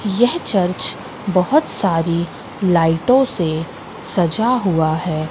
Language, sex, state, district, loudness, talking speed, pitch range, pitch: Hindi, female, Madhya Pradesh, Katni, -18 LUFS, 100 wpm, 165-230 Hz, 180 Hz